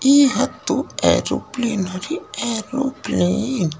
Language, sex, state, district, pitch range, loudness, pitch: Chhattisgarhi, male, Chhattisgarh, Rajnandgaon, 195-270 Hz, -20 LUFS, 245 Hz